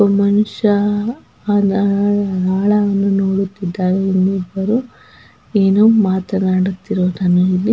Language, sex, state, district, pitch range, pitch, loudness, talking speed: Kannada, female, Karnataka, Belgaum, 190-205 Hz, 195 Hz, -16 LUFS, 80 wpm